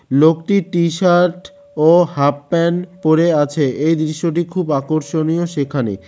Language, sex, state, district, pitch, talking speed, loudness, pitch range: Bengali, male, West Bengal, Cooch Behar, 165 Hz, 110 wpm, -16 LUFS, 150-175 Hz